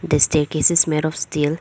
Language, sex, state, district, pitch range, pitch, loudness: English, female, Arunachal Pradesh, Lower Dibang Valley, 150-160 Hz, 155 Hz, -17 LUFS